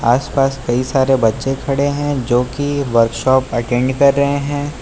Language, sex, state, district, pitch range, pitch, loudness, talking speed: Hindi, male, Uttar Pradesh, Lucknow, 125-140 Hz, 135 Hz, -16 LUFS, 175 wpm